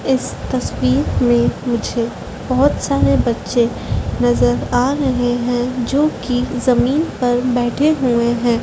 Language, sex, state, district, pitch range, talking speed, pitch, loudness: Hindi, female, Madhya Pradesh, Dhar, 235-255 Hz, 125 wpm, 245 Hz, -17 LUFS